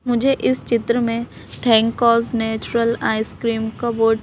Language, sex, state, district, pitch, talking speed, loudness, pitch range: Hindi, female, Madhya Pradesh, Bhopal, 230 Hz, 140 wpm, -19 LUFS, 225-235 Hz